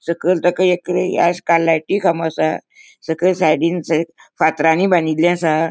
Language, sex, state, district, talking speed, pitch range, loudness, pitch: Konkani, female, Goa, North and South Goa, 125 wpm, 160-180 Hz, -16 LUFS, 170 Hz